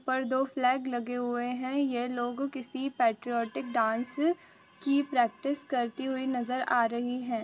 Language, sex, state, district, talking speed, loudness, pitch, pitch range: Hindi, female, Uttarakhand, Tehri Garhwal, 155 wpm, -30 LUFS, 250 Hz, 240-270 Hz